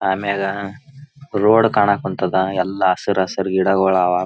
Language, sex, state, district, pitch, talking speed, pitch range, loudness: Kannada, male, Karnataka, Raichur, 95 Hz, 110 wpm, 95-105 Hz, -18 LUFS